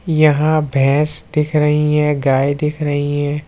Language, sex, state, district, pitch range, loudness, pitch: Hindi, male, Uttar Pradesh, Lucknow, 145-150 Hz, -16 LUFS, 150 Hz